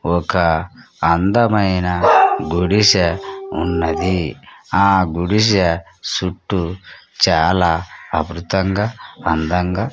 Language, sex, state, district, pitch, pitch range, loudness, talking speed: Telugu, male, Andhra Pradesh, Sri Satya Sai, 90 Hz, 85-100 Hz, -17 LUFS, 60 wpm